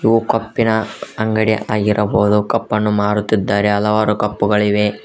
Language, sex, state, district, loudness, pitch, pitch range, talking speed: Kannada, male, Karnataka, Koppal, -16 LUFS, 105 Hz, 105-110 Hz, 130 wpm